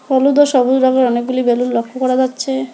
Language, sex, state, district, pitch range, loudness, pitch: Bengali, female, West Bengal, Alipurduar, 250-265 Hz, -14 LUFS, 260 Hz